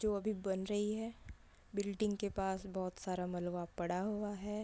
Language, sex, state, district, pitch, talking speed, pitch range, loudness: Hindi, female, Uttar Pradesh, Budaun, 200 Hz, 195 wpm, 185-210 Hz, -40 LUFS